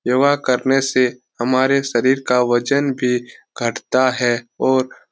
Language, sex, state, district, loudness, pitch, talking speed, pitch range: Hindi, male, Bihar, Lakhisarai, -18 LUFS, 130 Hz, 140 wpm, 120-135 Hz